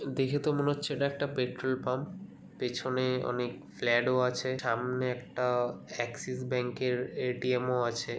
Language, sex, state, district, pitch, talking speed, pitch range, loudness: Bengali, male, West Bengal, Kolkata, 125 Hz, 155 wpm, 125-130 Hz, -32 LUFS